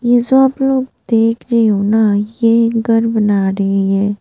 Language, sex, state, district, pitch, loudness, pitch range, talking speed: Hindi, female, Tripura, Unakoti, 225 Hz, -14 LUFS, 205-240 Hz, 170 wpm